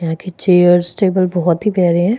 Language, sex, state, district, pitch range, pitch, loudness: Hindi, female, Goa, North and South Goa, 175-185 Hz, 180 Hz, -14 LUFS